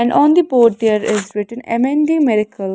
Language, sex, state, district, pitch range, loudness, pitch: English, female, Haryana, Rohtak, 210-270 Hz, -15 LUFS, 230 Hz